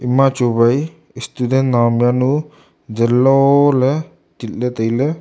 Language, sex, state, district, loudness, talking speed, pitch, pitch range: Wancho, male, Arunachal Pradesh, Longding, -15 LUFS, 125 wpm, 130 Hz, 120-140 Hz